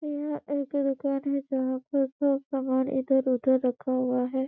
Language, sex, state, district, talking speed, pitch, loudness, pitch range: Hindi, female, Chhattisgarh, Bastar, 160 wpm, 270 Hz, -27 LUFS, 260-280 Hz